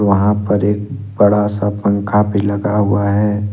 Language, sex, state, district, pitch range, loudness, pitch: Hindi, male, Jharkhand, Ranchi, 100-105 Hz, -15 LUFS, 105 Hz